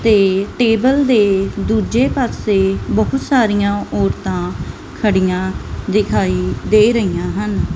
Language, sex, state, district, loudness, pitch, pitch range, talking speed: Punjabi, female, Punjab, Kapurthala, -16 LUFS, 205 Hz, 185-225 Hz, 100 wpm